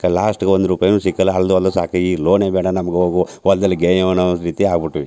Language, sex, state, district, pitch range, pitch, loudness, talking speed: Kannada, male, Karnataka, Chamarajanagar, 90-95 Hz, 95 Hz, -16 LUFS, 235 wpm